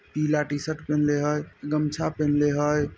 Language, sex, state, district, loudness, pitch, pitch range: Maithili, male, Bihar, Samastipur, -25 LUFS, 150 Hz, 145-150 Hz